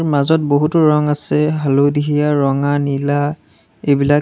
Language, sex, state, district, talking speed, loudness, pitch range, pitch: Assamese, male, Assam, Sonitpur, 115 wpm, -15 LUFS, 145-150 Hz, 145 Hz